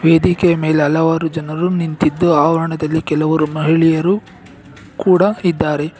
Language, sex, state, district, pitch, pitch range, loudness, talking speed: Kannada, male, Karnataka, Bangalore, 160 Hz, 155-175 Hz, -15 LUFS, 100 wpm